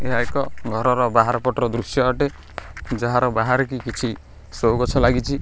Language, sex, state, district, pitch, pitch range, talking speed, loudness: Odia, male, Odisha, Khordha, 125 Hz, 115-130 Hz, 145 wpm, -21 LUFS